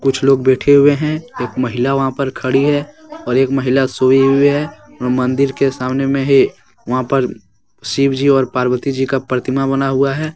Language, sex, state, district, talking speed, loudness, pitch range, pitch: Hindi, male, Jharkhand, Deoghar, 190 wpm, -15 LUFS, 130-140 Hz, 135 Hz